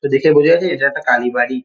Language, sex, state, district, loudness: Bengali, male, West Bengal, Kolkata, -14 LUFS